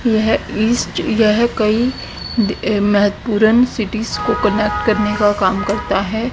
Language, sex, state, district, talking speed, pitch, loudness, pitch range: Hindi, female, Haryana, Rohtak, 135 wpm, 215 Hz, -16 LUFS, 205-225 Hz